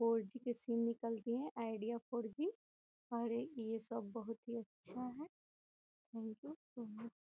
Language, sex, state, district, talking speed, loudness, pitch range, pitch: Hindi, female, Bihar, Gopalganj, 150 wpm, -44 LUFS, 230-245 Hz, 235 Hz